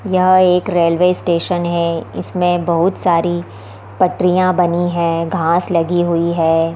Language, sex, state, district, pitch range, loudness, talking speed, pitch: Hindi, female, Bihar, East Champaran, 165-180 Hz, -15 LUFS, 135 wpm, 175 Hz